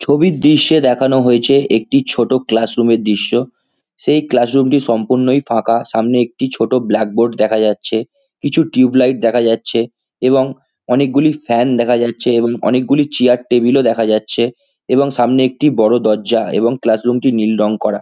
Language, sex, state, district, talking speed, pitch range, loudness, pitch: Bengali, male, West Bengal, Kolkata, 175 wpm, 115-135 Hz, -14 LUFS, 125 Hz